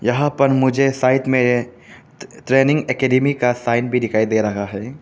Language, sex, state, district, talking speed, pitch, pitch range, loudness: Hindi, male, Arunachal Pradesh, Papum Pare, 165 wpm, 130 Hz, 120-135 Hz, -17 LUFS